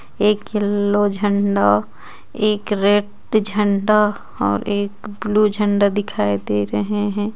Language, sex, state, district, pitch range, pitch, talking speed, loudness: Hindi, female, Jharkhand, Ranchi, 200-210 Hz, 205 Hz, 115 wpm, -19 LUFS